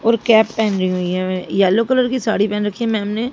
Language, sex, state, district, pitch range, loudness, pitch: Hindi, female, Haryana, Jhajjar, 195-230 Hz, -17 LUFS, 215 Hz